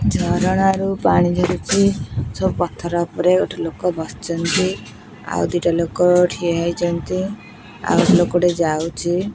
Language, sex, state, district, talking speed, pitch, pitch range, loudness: Odia, female, Odisha, Khordha, 120 wpm, 175 Hz, 170-185 Hz, -18 LUFS